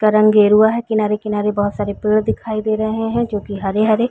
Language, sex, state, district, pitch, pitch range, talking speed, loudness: Hindi, female, Chhattisgarh, Raigarh, 215 Hz, 210-220 Hz, 220 wpm, -17 LUFS